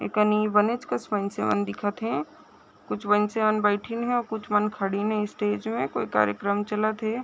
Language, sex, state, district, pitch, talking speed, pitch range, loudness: Chhattisgarhi, female, Chhattisgarh, Raigarh, 210 Hz, 180 wpm, 205-220 Hz, -26 LUFS